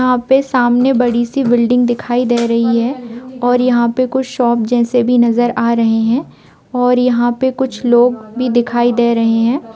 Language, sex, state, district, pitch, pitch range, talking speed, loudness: Bhojpuri, female, Bihar, Saran, 245 Hz, 235-250 Hz, 195 wpm, -13 LUFS